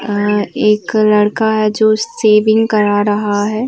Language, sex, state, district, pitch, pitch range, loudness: Hindi, female, Uttar Pradesh, Varanasi, 215 Hz, 205-220 Hz, -13 LUFS